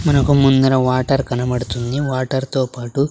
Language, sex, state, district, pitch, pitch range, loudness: Telugu, male, Andhra Pradesh, Sri Satya Sai, 130 Hz, 125-135 Hz, -17 LUFS